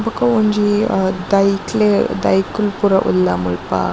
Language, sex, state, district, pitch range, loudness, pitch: Tulu, female, Karnataka, Dakshina Kannada, 185-210 Hz, -16 LUFS, 200 Hz